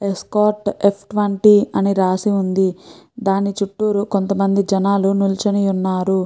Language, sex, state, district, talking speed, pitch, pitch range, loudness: Telugu, female, Andhra Pradesh, Guntur, 115 wpm, 200 Hz, 195-205 Hz, -17 LUFS